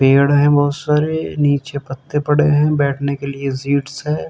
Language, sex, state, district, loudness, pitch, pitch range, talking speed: Hindi, male, Uttar Pradesh, Jyotiba Phule Nagar, -17 LUFS, 140 Hz, 140-150 Hz, 180 wpm